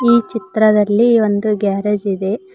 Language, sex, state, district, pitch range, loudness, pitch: Kannada, female, Karnataka, Koppal, 200-225 Hz, -15 LUFS, 210 Hz